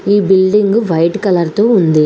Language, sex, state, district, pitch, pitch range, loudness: Telugu, female, Andhra Pradesh, Srikakulam, 195 Hz, 170-205 Hz, -12 LUFS